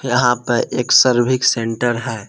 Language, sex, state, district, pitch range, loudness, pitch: Hindi, male, Jharkhand, Palamu, 115-125 Hz, -16 LUFS, 120 Hz